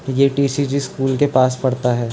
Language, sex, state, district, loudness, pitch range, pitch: Hindi, male, Uttarakhand, Tehri Garhwal, -18 LUFS, 130-140 Hz, 135 Hz